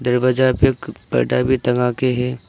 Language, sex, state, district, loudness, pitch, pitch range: Hindi, male, Arunachal Pradesh, Lower Dibang Valley, -18 LUFS, 125 Hz, 120-130 Hz